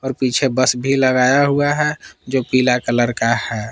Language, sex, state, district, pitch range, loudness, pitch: Hindi, male, Jharkhand, Palamu, 125-135 Hz, -17 LUFS, 130 Hz